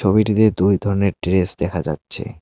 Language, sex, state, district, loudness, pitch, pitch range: Bengali, male, West Bengal, Cooch Behar, -18 LUFS, 95 Hz, 90-100 Hz